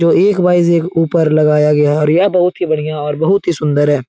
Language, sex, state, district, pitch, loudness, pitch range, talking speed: Hindi, male, Bihar, Jahanabad, 160 Hz, -13 LUFS, 150-175 Hz, 265 wpm